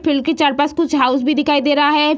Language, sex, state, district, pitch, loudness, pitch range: Hindi, female, Bihar, Sitamarhi, 295 Hz, -15 LUFS, 290-305 Hz